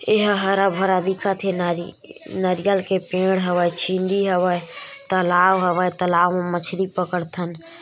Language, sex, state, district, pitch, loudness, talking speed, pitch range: Chhattisgarhi, female, Chhattisgarh, Korba, 185 Hz, -20 LUFS, 130 wpm, 175-190 Hz